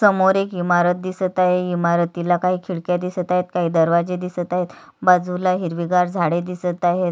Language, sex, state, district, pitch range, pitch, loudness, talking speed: Marathi, female, Maharashtra, Sindhudurg, 175-180 Hz, 180 Hz, -20 LUFS, 160 wpm